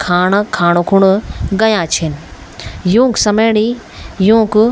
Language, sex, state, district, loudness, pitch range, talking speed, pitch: Garhwali, female, Uttarakhand, Tehri Garhwal, -13 LUFS, 175-220 Hz, 100 wpm, 200 Hz